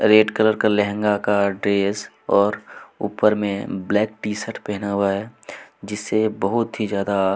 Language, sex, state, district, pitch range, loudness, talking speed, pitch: Hindi, male, Chhattisgarh, Kabirdham, 100-110 Hz, -21 LUFS, 145 wpm, 105 Hz